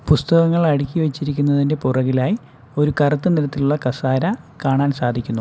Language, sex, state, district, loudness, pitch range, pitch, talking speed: Malayalam, male, Kerala, Kollam, -19 LUFS, 130-155 Hz, 145 Hz, 110 wpm